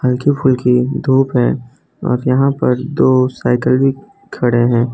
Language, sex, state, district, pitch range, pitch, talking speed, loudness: Hindi, male, Gujarat, Valsad, 125-135 Hz, 130 Hz, 145 wpm, -14 LUFS